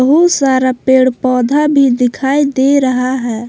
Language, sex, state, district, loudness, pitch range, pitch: Hindi, female, Jharkhand, Palamu, -12 LUFS, 255-280 Hz, 260 Hz